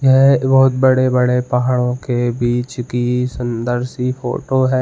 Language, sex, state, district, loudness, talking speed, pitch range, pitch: Hindi, male, Uttarakhand, Uttarkashi, -16 LUFS, 135 wpm, 120-130 Hz, 125 Hz